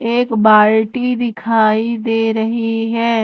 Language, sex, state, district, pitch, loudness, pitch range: Hindi, female, Madhya Pradesh, Umaria, 225 Hz, -14 LUFS, 220-235 Hz